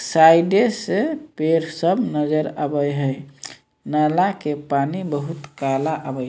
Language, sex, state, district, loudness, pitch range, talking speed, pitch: Maithili, male, Bihar, Samastipur, -20 LUFS, 145-170 Hz, 125 wpm, 155 Hz